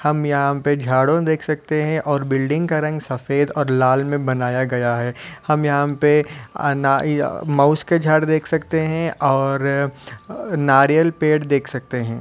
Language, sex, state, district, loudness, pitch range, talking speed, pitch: Hindi, male, Uttar Pradesh, Ghazipur, -19 LUFS, 135-155 Hz, 160 wpm, 145 Hz